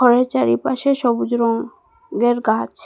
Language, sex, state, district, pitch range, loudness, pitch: Bengali, female, Assam, Hailakandi, 230-270 Hz, -18 LUFS, 240 Hz